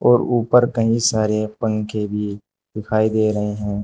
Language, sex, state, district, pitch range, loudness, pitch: Hindi, male, Uttar Pradesh, Shamli, 105-115 Hz, -19 LUFS, 110 Hz